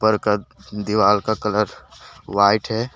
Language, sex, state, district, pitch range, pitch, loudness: Hindi, male, Jharkhand, Deoghar, 105-110 Hz, 105 Hz, -20 LUFS